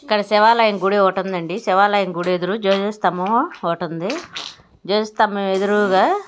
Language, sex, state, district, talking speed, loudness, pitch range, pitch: Telugu, female, Andhra Pradesh, Guntur, 115 wpm, -18 LUFS, 190-215 Hz, 200 Hz